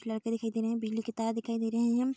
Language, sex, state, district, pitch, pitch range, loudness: Hindi, female, Bihar, Darbhanga, 230 Hz, 225-230 Hz, -32 LUFS